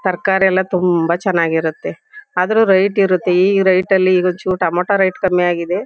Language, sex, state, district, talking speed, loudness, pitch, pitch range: Kannada, female, Karnataka, Shimoga, 165 wpm, -15 LUFS, 185 Hz, 180-190 Hz